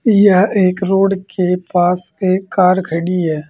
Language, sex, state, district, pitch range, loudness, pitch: Hindi, male, Uttar Pradesh, Saharanpur, 180-195 Hz, -14 LUFS, 185 Hz